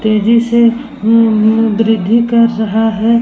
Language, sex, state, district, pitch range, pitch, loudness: Hindi, female, Bihar, Vaishali, 220-235 Hz, 225 Hz, -11 LUFS